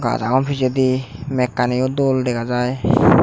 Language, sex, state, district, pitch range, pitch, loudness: Chakma, male, Tripura, Unakoti, 125-130 Hz, 130 Hz, -19 LUFS